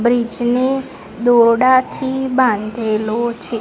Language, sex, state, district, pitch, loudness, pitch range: Gujarati, female, Gujarat, Gandhinagar, 240 Hz, -16 LUFS, 230-260 Hz